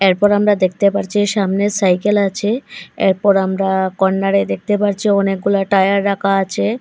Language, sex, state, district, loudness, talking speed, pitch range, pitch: Bengali, female, Assam, Hailakandi, -16 LUFS, 140 wpm, 195-205 Hz, 200 Hz